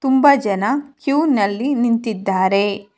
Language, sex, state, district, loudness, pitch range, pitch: Kannada, female, Karnataka, Bangalore, -17 LUFS, 200-275 Hz, 230 Hz